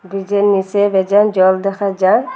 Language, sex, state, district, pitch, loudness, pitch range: Bengali, female, Assam, Hailakandi, 195 Hz, -14 LUFS, 190-205 Hz